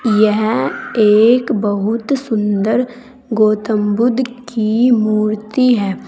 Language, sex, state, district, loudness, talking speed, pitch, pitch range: Hindi, female, Uttar Pradesh, Saharanpur, -15 LUFS, 90 wpm, 220 Hz, 215-245 Hz